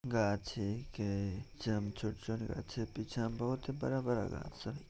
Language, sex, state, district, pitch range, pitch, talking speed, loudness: Maithili, male, Bihar, Samastipur, 105-120 Hz, 110 Hz, 85 wpm, -39 LUFS